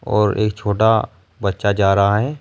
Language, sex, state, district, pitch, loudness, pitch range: Hindi, male, Uttar Pradesh, Saharanpur, 105 Hz, -17 LUFS, 100-110 Hz